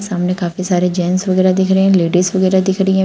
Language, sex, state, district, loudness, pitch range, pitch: Hindi, female, Uttar Pradesh, Shamli, -14 LUFS, 180-190 Hz, 185 Hz